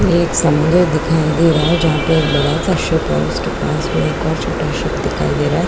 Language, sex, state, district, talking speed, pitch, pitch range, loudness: Hindi, female, Chhattisgarh, Bilaspur, 255 wpm, 160 Hz, 150-165 Hz, -15 LUFS